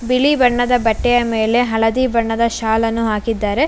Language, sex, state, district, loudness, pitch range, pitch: Kannada, female, Karnataka, Bangalore, -16 LUFS, 225-245 Hz, 230 Hz